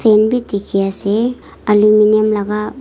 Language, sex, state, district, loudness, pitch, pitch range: Nagamese, female, Nagaland, Kohima, -14 LUFS, 210 Hz, 205-215 Hz